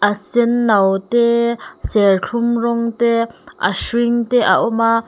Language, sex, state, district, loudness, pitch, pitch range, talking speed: Mizo, female, Mizoram, Aizawl, -16 LUFS, 235 Hz, 215-235 Hz, 140 wpm